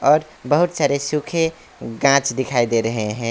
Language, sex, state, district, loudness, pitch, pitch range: Hindi, male, West Bengal, Alipurduar, -19 LUFS, 140 Hz, 115-150 Hz